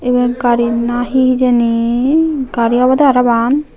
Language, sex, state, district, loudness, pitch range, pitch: Chakma, female, Tripura, Unakoti, -13 LUFS, 235-260 Hz, 250 Hz